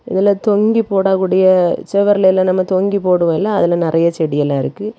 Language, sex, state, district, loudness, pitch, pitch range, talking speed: Tamil, female, Tamil Nadu, Kanyakumari, -14 LUFS, 190 Hz, 175-200 Hz, 155 wpm